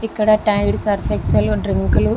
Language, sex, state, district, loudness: Telugu, female, Andhra Pradesh, Visakhapatnam, -17 LUFS